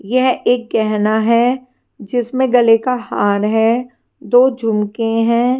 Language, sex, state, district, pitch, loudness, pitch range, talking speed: Hindi, female, Himachal Pradesh, Shimla, 235 Hz, -15 LUFS, 220-250 Hz, 130 wpm